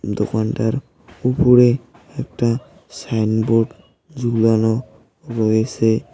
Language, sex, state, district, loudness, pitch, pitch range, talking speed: Bengali, male, West Bengal, Cooch Behar, -18 LUFS, 115 Hz, 110-125 Hz, 60 wpm